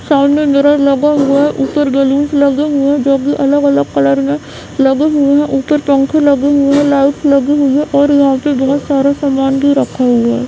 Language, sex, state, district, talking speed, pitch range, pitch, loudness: Hindi, female, Bihar, Madhepura, 210 wpm, 275-290 Hz, 280 Hz, -11 LUFS